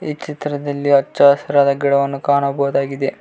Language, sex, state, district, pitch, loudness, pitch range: Kannada, male, Karnataka, Koppal, 140 Hz, -16 LUFS, 140-145 Hz